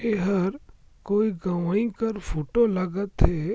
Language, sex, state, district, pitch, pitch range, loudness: Surgujia, male, Chhattisgarh, Sarguja, 200 Hz, 185-220 Hz, -25 LUFS